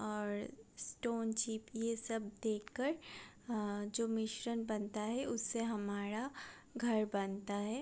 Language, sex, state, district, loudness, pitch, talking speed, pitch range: Hindi, female, Bihar, Gopalganj, -40 LUFS, 220 Hz, 125 wpm, 210-230 Hz